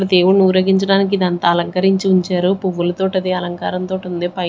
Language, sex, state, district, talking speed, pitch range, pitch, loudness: Telugu, female, Andhra Pradesh, Sri Satya Sai, 160 wpm, 180-190 Hz, 185 Hz, -16 LUFS